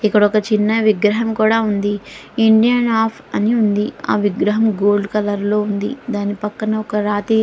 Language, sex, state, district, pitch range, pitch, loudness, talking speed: Telugu, female, Andhra Pradesh, Guntur, 205-220 Hz, 210 Hz, -17 LUFS, 115 wpm